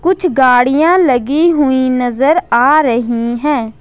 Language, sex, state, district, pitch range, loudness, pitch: Hindi, female, Jharkhand, Ranchi, 245-310 Hz, -12 LUFS, 265 Hz